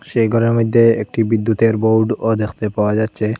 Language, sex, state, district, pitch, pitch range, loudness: Bengali, male, Assam, Hailakandi, 110 Hz, 110-115 Hz, -16 LUFS